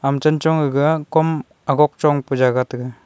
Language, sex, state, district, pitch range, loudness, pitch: Wancho, male, Arunachal Pradesh, Longding, 135-155 Hz, -18 LUFS, 145 Hz